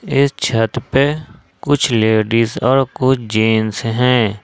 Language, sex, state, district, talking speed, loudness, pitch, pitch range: Hindi, male, Jharkhand, Ranchi, 120 wpm, -15 LUFS, 125 Hz, 110-135 Hz